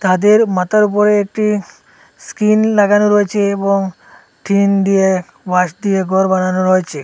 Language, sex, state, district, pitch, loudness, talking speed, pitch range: Bengali, male, Assam, Hailakandi, 200 Hz, -14 LUFS, 130 wpm, 185-210 Hz